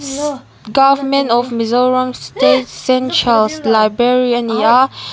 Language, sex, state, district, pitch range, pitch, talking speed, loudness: Mizo, female, Mizoram, Aizawl, 230-270 Hz, 250 Hz, 95 wpm, -14 LUFS